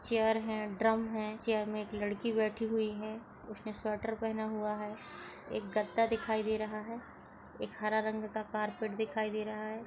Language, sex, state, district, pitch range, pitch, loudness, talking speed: Hindi, female, Maharashtra, Chandrapur, 215-220 Hz, 215 Hz, -35 LUFS, 190 wpm